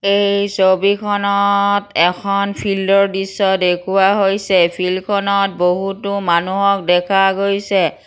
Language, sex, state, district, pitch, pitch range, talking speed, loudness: Assamese, female, Assam, Kamrup Metropolitan, 195 Hz, 190-200 Hz, 95 wpm, -15 LUFS